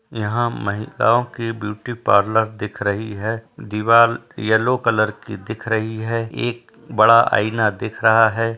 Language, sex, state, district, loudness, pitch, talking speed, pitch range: Hindi, male, Uttar Pradesh, Etah, -19 LUFS, 110 Hz, 145 wpm, 105-115 Hz